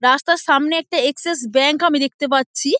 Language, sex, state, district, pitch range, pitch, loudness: Bengali, female, West Bengal, Dakshin Dinajpur, 270-325 Hz, 285 Hz, -17 LUFS